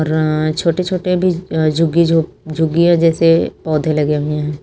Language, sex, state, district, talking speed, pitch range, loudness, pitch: Hindi, female, Uttar Pradesh, Lucknow, 170 wpm, 155-170 Hz, -15 LUFS, 160 Hz